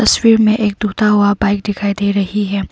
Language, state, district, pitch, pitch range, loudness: Hindi, Arunachal Pradesh, Papum Pare, 205 Hz, 200-210 Hz, -14 LUFS